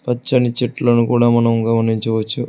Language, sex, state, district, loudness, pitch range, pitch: Telugu, male, Telangana, Hyderabad, -16 LUFS, 115-120 Hz, 120 Hz